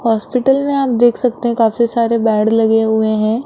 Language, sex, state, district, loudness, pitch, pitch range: Hindi, female, Rajasthan, Jaipur, -14 LUFS, 230 Hz, 220-245 Hz